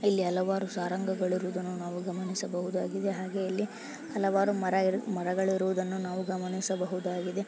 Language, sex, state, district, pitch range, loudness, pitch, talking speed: Kannada, female, Karnataka, Belgaum, 185-195 Hz, -31 LUFS, 185 Hz, 120 wpm